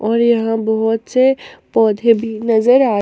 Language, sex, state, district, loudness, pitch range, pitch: Hindi, female, Jharkhand, Palamu, -15 LUFS, 220-235 Hz, 225 Hz